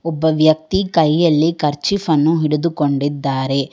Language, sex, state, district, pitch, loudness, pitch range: Kannada, female, Karnataka, Bangalore, 155 Hz, -16 LUFS, 145-165 Hz